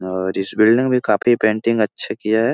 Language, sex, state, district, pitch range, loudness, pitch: Hindi, male, Bihar, Supaul, 100-115 Hz, -17 LUFS, 110 Hz